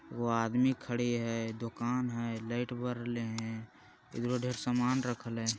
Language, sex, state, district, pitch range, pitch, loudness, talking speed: Magahi, male, Bihar, Jamui, 115-125 Hz, 120 Hz, -34 LUFS, 160 wpm